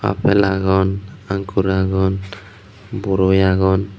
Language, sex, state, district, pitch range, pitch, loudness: Chakma, male, Tripura, Unakoti, 95-100 Hz, 95 Hz, -17 LUFS